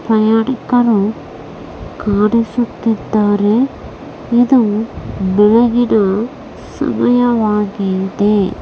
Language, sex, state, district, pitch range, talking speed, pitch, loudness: Kannada, female, Karnataka, Bellary, 205-240 Hz, 40 wpm, 220 Hz, -14 LUFS